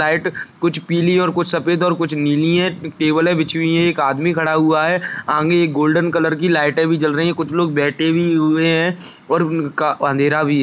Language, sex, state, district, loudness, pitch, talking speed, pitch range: Hindi, male, Chhattisgarh, Balrampur, -17 LUFS, 165 Hz, 215 wpm, 155-170 Hz